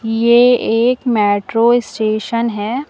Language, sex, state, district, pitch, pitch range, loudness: Hindi, female, Uttar Pradesh, Lucknow, 230 Hz, 220-245 Hz, -14 LUFS